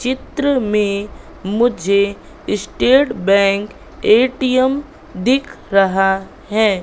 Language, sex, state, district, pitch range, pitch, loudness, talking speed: Hindi, female, Madhya Pradesh, Katni, 200-260 Hz, 215 Hz, -16 LUFS, 80 wpm